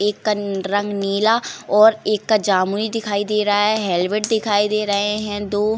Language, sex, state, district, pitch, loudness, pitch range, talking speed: Hindi, female, Uttar Pradesh, Varanasi, 210 Hz, -19 LUFS, 205-215 Hz, 185 wpm